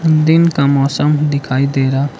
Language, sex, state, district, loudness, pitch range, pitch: Hindi, male, Arunachal Pradesh, Lower Dibang Valley, -13 LUFS, 135-155 Hz, 140 Hz